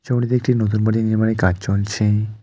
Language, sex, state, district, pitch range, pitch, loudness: Bengali, male, West Bengal, Alipurduar, 105-120 Hz, 110 Hz, -19 LUFS